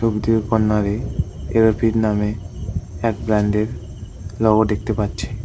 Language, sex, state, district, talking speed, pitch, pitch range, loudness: Bengali, male, West Bengal, Cooch Behar, 100 wpm, 105 Hz, 105-110 Hz, -20 LUFS